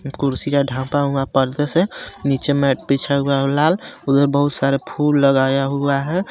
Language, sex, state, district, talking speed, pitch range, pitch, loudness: Hindi, male, Jharkhand, Garhwa, 160 wpm, 135-145 Hz, 140 Hz, -18 LUFS